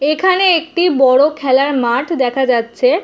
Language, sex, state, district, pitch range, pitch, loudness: Bengali, female, West Bengal, Jhargram, 260-345 Hz, 285 Hz, -13 LUFS